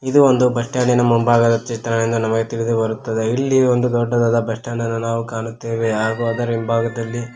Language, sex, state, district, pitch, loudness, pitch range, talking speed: Kannada, male, Karnataka, Koppal, 115 Hz, -18 LUFS, 115-120 Hz, 170 wpm